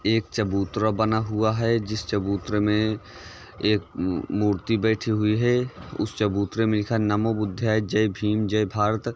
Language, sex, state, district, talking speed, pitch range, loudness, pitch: Hindi, male, Uttar Pradesh, Varanasi, 155 wpm, 105-110 Hz, -24 LUFS, 105 Hz